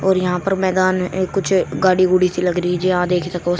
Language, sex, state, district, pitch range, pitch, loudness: Hindi, male, Uttar Pradesh, Shamli, 180-185 Hz, 185 Hz, -17 LUFS